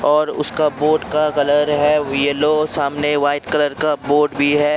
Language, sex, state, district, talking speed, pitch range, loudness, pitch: Hindi, male, Bihar, Kishanganj, 175 wpm, 145-150 Hz, -17 LUFS, 150 Hz